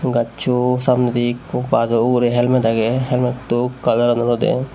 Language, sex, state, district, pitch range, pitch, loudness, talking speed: Chakma, male, Tripura, Unakoti, 120-125 Hz, 125 Hz, -17 LUFS, 125 wpm